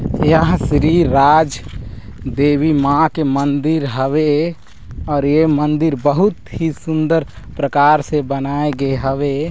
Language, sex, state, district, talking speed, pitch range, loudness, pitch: Chhattisgarhi, male, Chhattisgarh, Raigarh, 120 wpm, 140-155 Hz, -15 LUFS, 145 Hz